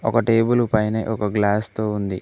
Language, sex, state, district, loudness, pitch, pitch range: Telugu, male, Telangana, Mahabubabad, -20 LUFS, 110 Hz, 105-115 Hz